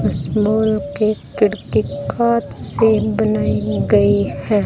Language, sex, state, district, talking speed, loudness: Hindi, female, Rajasthan, Bikaner, 115 wpm, -17 LUFS